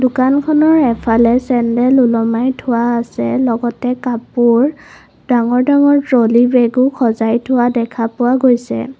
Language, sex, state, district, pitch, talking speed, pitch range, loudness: Assamese, female, Assam, Kamrup Metropolitan, 245 Hz, 115 wpm, 235-260 Hz, -13 LUFS